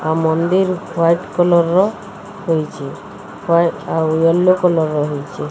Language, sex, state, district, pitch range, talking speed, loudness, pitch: Odia, female, Odisha, Sambalpur, 160-180 Hz, 130 wpm, -16 LUFS, 170 Hz